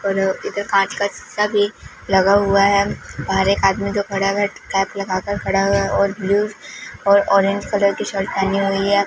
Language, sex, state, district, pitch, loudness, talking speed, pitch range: Hindi, female, Punjab, Fazilka, 200 Hz, -18 LUFS, 200 wpm, 195-200 Hz